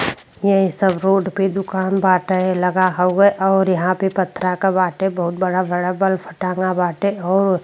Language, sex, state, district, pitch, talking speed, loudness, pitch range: Bhojpuri, female, Uttar Pradesh, Deoria, 185 Hz, 165 wpm, -18 LUFS, 180-195 Hz